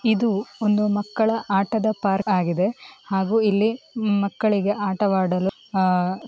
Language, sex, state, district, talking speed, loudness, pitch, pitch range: Kannada, female, Karnataka, Mysore, 85 wpm, -22 LUFS, 205 Hz, 195-220 Hz